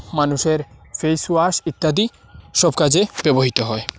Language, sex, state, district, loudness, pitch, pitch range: Bengali, male, Assam, Hailakandi, -18 LUFS, 155 Hz, 130-170 Hz